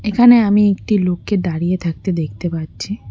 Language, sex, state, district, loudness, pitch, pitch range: Bengali, female, West Bengal, Cooch Behar, -16 LUFS, 185 Hz, 170-205 Hz